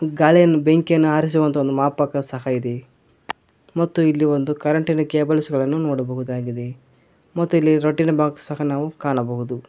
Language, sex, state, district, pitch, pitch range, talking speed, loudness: Kannada, male, Karnataka, Koppal, 150 Hz, 130-155 Hz, 135 wpm, -19 LUFS